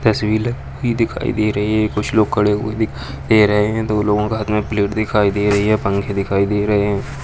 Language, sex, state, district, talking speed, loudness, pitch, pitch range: Hindi, male, Uttarakhand, Tehri Garhwal, 215 wpm, -17 LUFS, 105 Hz, 105-110 Hz